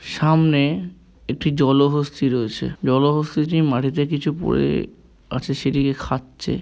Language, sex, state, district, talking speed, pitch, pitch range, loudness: Bengali, male, West Bengal, Kolkata, 100 wpm, 145 Hz, 135-155 Hz, -20 LUFS